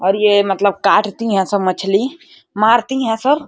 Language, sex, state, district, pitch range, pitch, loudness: Hindi, female, Uttar Pradesh, Deoria, 195-235 Hz, 210 Hz, -15 LUFS